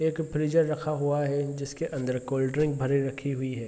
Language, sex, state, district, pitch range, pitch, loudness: Hindi, male, Bihar, Sitamarhi, 135-150 Hz, 140 Hz, -28 LUFS